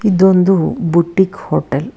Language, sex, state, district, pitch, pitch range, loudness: Kannada, female, Karnataka, Bangalore, 190 Hz, 170-190 Hz, -14 LUFS